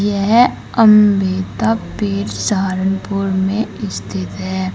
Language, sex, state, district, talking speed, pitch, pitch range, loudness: Hindi, female, Uttar Pradesh, Saharanpur, 90 wpm, 195 Hz, 185-210 Hz, -16 LUFS